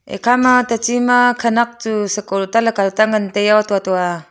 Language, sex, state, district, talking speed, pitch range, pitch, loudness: Wancho, female, Arunachal Pradesh, Longding, 210 wpm, 200-235 Hz, 215 Hz, -15 LUFS